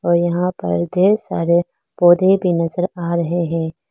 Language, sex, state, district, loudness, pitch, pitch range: Hindi, female, Arunachal Pradesh, Lower Dibang Valley, -17 LUFS, 175 Hz, 170-180 Hz